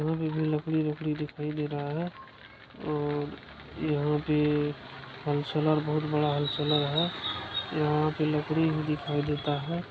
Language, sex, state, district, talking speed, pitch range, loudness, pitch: Hindi, male, Bihar, Araria, 145 wpm, 145-155 Hz, -29 LUFS, 150 Hz